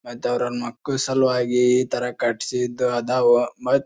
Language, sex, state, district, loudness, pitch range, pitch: Kannada, male, Karnataka, Bijapur, -21 LUFS, 120-125 Hz, 125 Hz